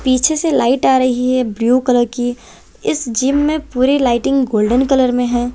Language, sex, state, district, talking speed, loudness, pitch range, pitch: Hindi, female, Punjab, Kapurthala, 195 wpm, -15 LUFS, 245-270 Hz, 255 Hz